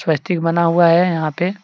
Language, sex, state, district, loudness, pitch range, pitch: Hindi, male, Jharkhand, Deoghar, -16 LUFS, 165-175 Hz, 170 Hz